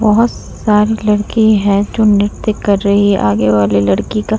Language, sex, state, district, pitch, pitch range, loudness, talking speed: Hindi, female, Bihar, Vaishali, 210 Hz, 200-215 Hz, -13 LUFS, 190 wpm